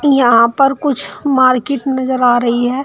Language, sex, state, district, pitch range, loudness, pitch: Hindi, female, Uttar Pradesh, Shamli, 245-275 Hz, -13 LUFS, 260 Hz